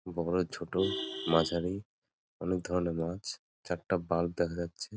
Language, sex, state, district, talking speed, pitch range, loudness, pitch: Bengali, male, West Bengal, Jalpaiguri, 120 wpm, 85-90 Hz, -33 LUFS, 85 Hz